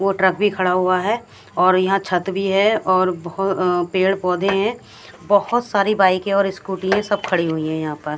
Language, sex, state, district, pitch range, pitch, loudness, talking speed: Hindi, female, Haryana, Jhajjar, 180-200 Hz, 190 Hz, -19 LUFS, 200 wpm